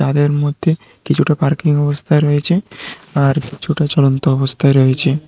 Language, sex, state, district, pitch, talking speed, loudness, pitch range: Bengali, male, Tripura, West Tripura, 145 Hz, 125 wpm, -15 LUFS, 140-155 Hz